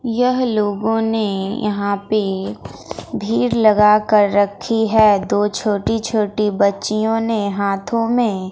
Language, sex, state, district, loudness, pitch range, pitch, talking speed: Hindi, female, Bihar, West Champaran, -17 LUFS, 200-225 Hz, 210 Hz, 120 wpm